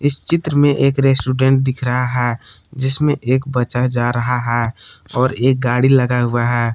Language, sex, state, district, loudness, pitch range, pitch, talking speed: Hindi, male, Jharkhand, Palamu, -16 LUFS, 120-135 Hz, 125 Hz, 170 wpm